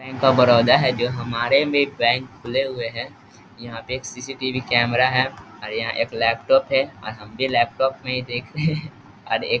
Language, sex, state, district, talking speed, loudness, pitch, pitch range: Hindi, male, Bihar, East Champaran, 205 wpm, -21 LUFS, 125 Hz, 120-135 Hz